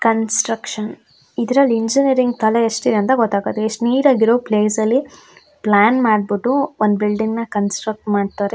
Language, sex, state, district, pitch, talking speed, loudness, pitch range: Kannada, female, Karnataka, Shimoga, 225 Hz, 125 wpm, -17 LUFS, 210-245 Hz